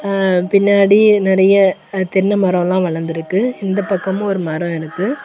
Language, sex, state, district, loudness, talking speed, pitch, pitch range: Tamil, female, Tamil Nadu, Kanyakumari, -15 LUFS, 135 wpm, 195 Hz, 180-200 Hz